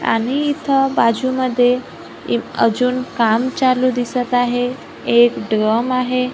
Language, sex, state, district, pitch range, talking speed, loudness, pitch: Marathi, female, Maharashtra, Gondia, 240-255 Hz, 115 wpm, -17 LUFS, 250 Hz